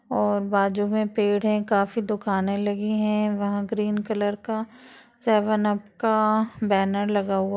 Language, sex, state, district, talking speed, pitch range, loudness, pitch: Hindi, female, Bihar, Vaishali, 160 wpm, 205-215 Hz, -24 LUFS, 210 Hz